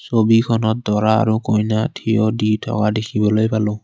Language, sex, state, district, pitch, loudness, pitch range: Assamese, male, Assam, Kamrup Metropolitan, 110 Hz, -17 LUFS, 105-110 Hz